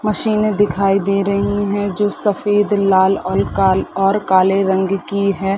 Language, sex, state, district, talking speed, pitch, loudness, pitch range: Hindi, female, Chhattisgarh, Sarguja, 160 wpm, 200 Hz, -16 LUFS, 195-205 Hz